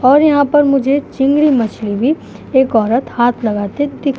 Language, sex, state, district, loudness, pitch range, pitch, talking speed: Hindi, female, Uttar Pradesh, Budaun, -14 LUFS, 235-285 Hz, 270 Hz, 185 wpm